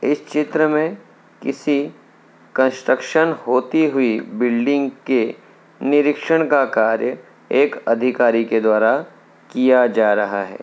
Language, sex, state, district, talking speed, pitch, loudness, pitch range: Hindi, male, Uttar Pradesh, Hamirpur, 115 wpm, 130 Hz, -18 LUFS, 115-150 Hz